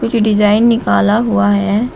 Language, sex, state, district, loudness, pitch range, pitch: Hindi, female, Uttar Pradesh, Shamli, -12 LUFS, 210-230 Hz, 215 Hz